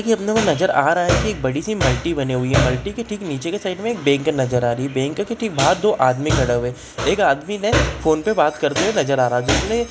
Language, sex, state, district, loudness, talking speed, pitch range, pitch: Hindi, male, Bihar, Darbhanga, -19 LUFS, 290 wpm, 130-200 Hz, 145 Hz